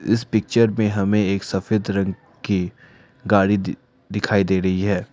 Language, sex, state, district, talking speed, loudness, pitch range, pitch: Hindi, male, Assam, Kamrup Metropolitan, 150 wpm, -21 LUFS, 95-110 Hz, 100 Hz